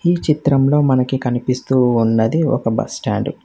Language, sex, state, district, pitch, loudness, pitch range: Telugu, male, Telangana, Hyderabad, 130 Hz, -17 LUFS, 120-145 Hz